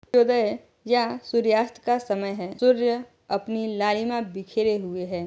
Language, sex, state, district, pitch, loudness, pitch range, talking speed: Hindi, female, Uttar Pradesh, Jyotiba Phule Nagar, 225 Hz, -24 LUFS, 200-240 Hz, 135 wpm